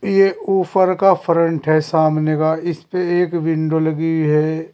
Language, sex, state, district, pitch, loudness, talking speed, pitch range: Hindi, male, Uttar Pradesh, Saharanpur, 165 Hz, -17 LUFS, 150 wpm, 155-180 Hz